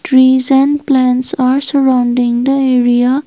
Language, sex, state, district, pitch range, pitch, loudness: English, female, Assam, Kamrup Metropolitan, 250-275 Hz, 260 Hz, -11 LUFS